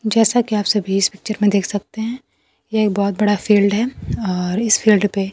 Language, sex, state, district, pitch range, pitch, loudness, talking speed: Hindi, female, Bihar, Kaimur, 200-220 Hz, 210 Hz, -17 LUFS, 235 wpm